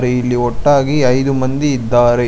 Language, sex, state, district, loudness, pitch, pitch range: Kannada, male, Karnataka, Bangalore, -14 LUFS, 125 Hz, 120-135 Hz